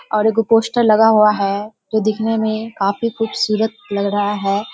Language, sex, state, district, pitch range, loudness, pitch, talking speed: Hindi, female, Bihar, Kishanganj, 205-225 Hz, -17 LUFS, 215 Hz, 175 wpm